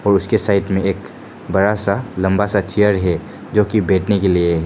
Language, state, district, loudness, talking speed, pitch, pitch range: Hindi, Arunachal Pradesh, Papum Pare, -17 LUFS, 195 wpm, 100 Hz, 95-105 Hz